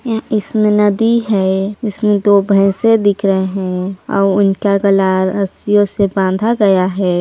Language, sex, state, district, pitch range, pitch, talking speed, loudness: Chhattisgarhi, female, Chhattisgarh, Sarguja, 190-210 Hz, 200 Hz, 140 wpm, -14 LUFS